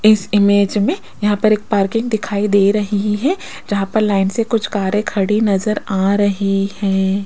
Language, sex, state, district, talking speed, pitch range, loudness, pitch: Hindi, female, Rajasthan, Jaipur, 180 wpm, 195-215 Hz, -16 LUFS, 205 Hz